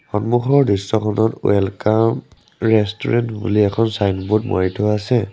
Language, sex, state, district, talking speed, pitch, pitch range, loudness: Assamese, male, Assam, Sonitpur, 110 wpm, 110 Hz, 100-115 Hz, -18 LUFS